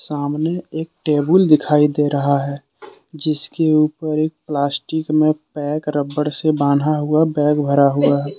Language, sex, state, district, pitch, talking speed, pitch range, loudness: Hindi, male, Jharkhand, Deoghar, 150 Hz, 150 wpm, 145-155 Hz, -18 LUFS